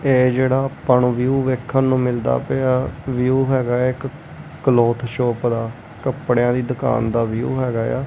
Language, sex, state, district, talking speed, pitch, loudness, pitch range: Punjabi, male, Punjab, Kapurthala, 165 wpm, 125 Hz, -19 LUFS, 120-130 Hz